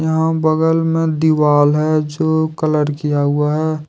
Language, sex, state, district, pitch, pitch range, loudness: Hindi, male, Jharkhand, Deoghar, 155 Hz, 150-160 Hz, -16 LUFS